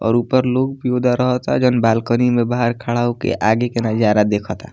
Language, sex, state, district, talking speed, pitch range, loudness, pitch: Bhojpuri, male, Bihar, Muzaffarpur, 215 wpm, 115-125 Hz, -17 LUFS, 120 Hz